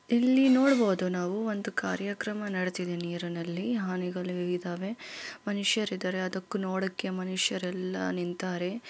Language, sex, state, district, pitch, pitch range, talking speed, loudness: Kannada, female, Karnataka, Bellary, 185 Hz, 180-210 Hz, 95 wpm, -30 LUFS